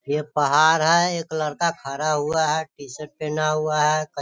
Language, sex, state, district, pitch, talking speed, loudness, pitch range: Hindi, male, Bihar, Sitamarhi, 155 Hz, 200 wpm, -21 LUFS, 150-160 Hz